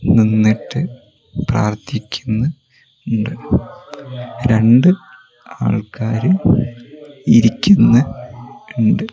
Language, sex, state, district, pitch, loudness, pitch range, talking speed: Malayalam, male, Kerala, Kozhikode, 120 Hz, -16 LUFS, 115-140 Hz, 45 wpm